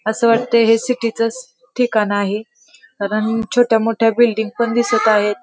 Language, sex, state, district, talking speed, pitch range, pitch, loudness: Marathi, female, Maharashtra, Pune, 145 wpm, 220-240 Hz, 230 Hz, -16 LUFS